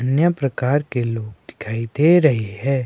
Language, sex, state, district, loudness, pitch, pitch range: Hindi, male, Himachal Pradesh, Shimla, -19 LUFS, 130 Hz, 115-145 Hz